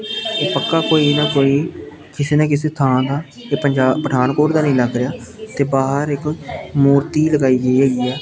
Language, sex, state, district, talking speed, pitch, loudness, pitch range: Punjabi, male, Punjab, Pathankot, 180 wpm, 140 Hz, -16 LUFS, 135-150 Hz